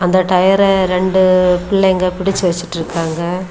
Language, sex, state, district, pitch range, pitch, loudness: Tamil, female, Tamil Nadu, Kanyakumari, 180-190 Hz, 185 Hz, -14 LUFS